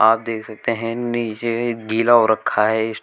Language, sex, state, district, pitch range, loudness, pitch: Hindi, male, Uttar Pradesh, Shamli, 110-115 Hz, -19 LUFS, 115 Hz